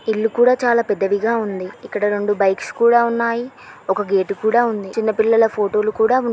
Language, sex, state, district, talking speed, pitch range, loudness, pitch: Telugu, female, Andhra Pradesh, Srikakulam, 180 wpm, 205-235 Hz, -18 LUFS, 220 Hz